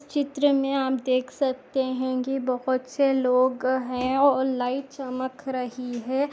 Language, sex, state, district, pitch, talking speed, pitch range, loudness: Hindi, female, Goa, North and South Goa, 260 Hz, 150 wpm, 255-270 Hz, -25 LUFS